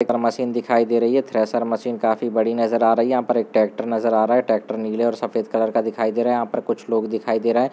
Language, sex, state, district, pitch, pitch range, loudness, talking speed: Hindi, male, Andhra Pradesh, Chittoor, 115 Hz, 110-120 Hz, -20 LUFS, 295 wpm